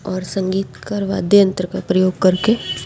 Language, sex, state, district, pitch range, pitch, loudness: Hindi, female, Delhi, New Delhi, 180-195 Hz, 185 Hz, -17 LUFS